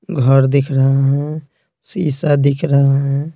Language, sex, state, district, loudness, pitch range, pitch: Hindi, male, Bihar, Patna, -15 LUFS, 135-155 Hz, 140 Hz